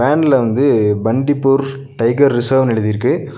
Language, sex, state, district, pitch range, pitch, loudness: Tamil, male, Tamil Nadu, Nilgiris, 115-135 Hz, 130 Hz, -14 LUFS